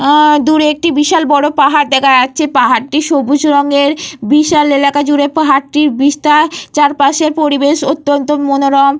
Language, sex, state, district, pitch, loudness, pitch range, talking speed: Bengali, female, Jharkhand, Jamtara, 290 Hz, -10 LUFS, 280-300 Hz, 135 wpm